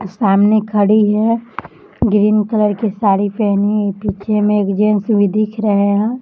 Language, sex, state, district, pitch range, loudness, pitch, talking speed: Hindi, female, Jharkhand, Jamtara, 205-215 Hz, -15 LUFS, 210 Hz, 165 wpm